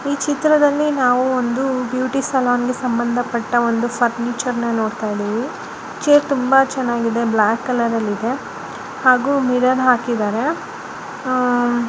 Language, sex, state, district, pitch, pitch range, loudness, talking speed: Kannada, male, Karnataka, Bellary, 250 Hz, 235-265 Hz, -18 LUFS, 110 wpm